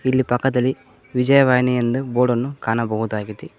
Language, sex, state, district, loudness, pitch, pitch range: Kannada, male, Karnataka, Koppal, -19 LUFS, 125 Hz, 115-130 Hz